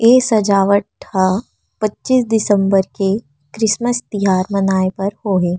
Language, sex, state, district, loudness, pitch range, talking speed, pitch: Chhattisgarhi, female, Chhattisgarh, Rajnandgaon, -16 LUFS, 190-220 Hz, 130 wpm, 200 Hz